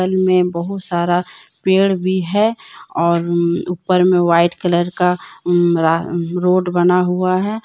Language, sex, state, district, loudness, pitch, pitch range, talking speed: Hindi, female, Jharkhand, Deoghar, -16 LUFS, 180 Hz, 175-185 Hz, 135 wpm